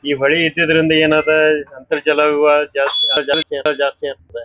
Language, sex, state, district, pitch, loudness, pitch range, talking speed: Kannada, male, Karnataka, Bijapur, 150 Hz, -14 LUFS, 140-155 Hz, 135 wpm